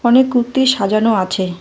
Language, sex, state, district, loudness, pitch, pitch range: Bengali, female, West Bengal, Cooch Behar, -15 LUFS, 225 Hz, 195-250 Hz